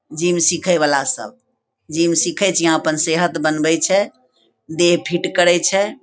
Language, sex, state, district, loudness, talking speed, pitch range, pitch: Maithili, female, Bihar, Begusarai, -16 LUFS, 150 wpm, 160-175 Hz, 170 Hz